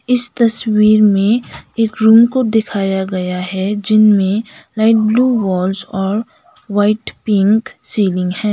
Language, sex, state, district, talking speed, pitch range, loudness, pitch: Hindi, female, Sikkim, Gangtok, 125 wpm, 195-225 Hz, -14 LUFS, 215 Hz